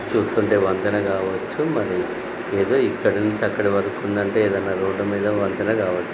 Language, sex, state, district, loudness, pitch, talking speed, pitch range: Telugu, male, Telangana, Nalgonda, -21 LUFS, 100 Hz, 125 wpm, 95-105 Hz